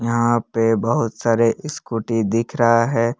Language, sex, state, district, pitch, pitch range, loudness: Hindi, male, Jharkhand, Palamu, 115 Hz, 115-120 Hz, -19 LUFS